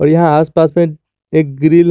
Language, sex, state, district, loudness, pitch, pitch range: Hindi, male, Jharkhand, Garhwa, -12 LUFS, 160 Hz, 150-170 Hz